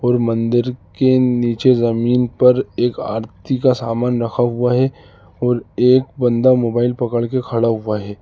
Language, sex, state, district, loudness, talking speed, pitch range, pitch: Hindi, male, Uttar Pradesh, Lalitpur, -17 LUFS, 160 wpm, 115-125 Hz, 120 Hz